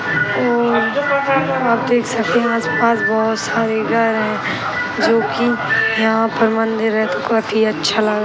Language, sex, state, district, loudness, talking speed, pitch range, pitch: Hindi, male, Bihar, Sitamarhi, -16 LUFS, 155 wpm, 220-240 Hz, 225 Hz